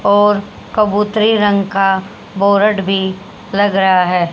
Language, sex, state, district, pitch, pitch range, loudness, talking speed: Hindi, female, Haryana, Charkhi Dadri, 200 Hz, 195-210 Hz, -14 LUFS, 125 wpm